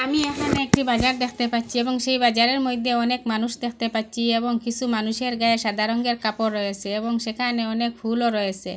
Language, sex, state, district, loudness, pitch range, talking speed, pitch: Bengali, female, Assam, Hailakandi, -23 LUFS, 225-245 Hz, 185 wpm, 235 Hz